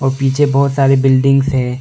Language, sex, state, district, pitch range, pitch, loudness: Hindi, male, Arunachal Pradesh, Longding, 135-140 Hz, 135 Hz, -13 LUFS